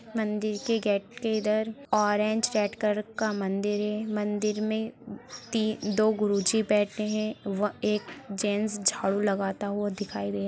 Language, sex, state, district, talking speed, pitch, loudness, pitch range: Hindi, female, Bihar, Gaya, 155 wpm, 210 Hz, -28 LUFS, 205-215 Hz